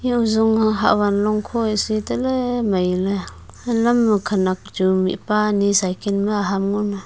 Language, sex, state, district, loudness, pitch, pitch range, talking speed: Wancho, female, Arunachal Pradesh, Longding, -19 LUFS, 210 Hz, 195-220 Hz, 170 wpm